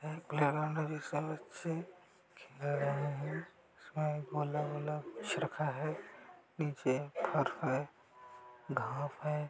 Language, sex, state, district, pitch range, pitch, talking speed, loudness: Hindi, male, Chhattisgarh, Raigarh, 145-160 Hz, 150 Hz, 105 wpm, -38 LUFS